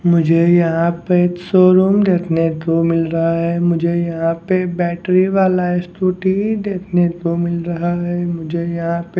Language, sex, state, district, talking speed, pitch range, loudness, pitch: Hindi, male, Haryana, Jhajjar, 155 wpm, 170-180 Hz, -16 LUFS, 175 Hz